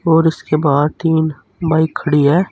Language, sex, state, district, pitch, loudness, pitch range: Hindi, male, Uttar Pradesh, Saharanpur, 160 Hz, -15 LUFS, 150-165 Hz